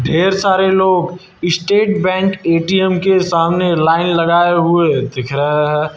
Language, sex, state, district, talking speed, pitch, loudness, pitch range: Hindi, male, Uttar Pradesh, Lucknow, 140 wpm, 175 Hz, -14 LUFS, 165-190 Hz